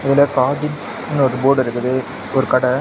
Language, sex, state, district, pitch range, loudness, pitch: Tamil, male, Tamil Nadu, Kanyakumari, 130-140 Hz, -18 LUFS, 135 Hz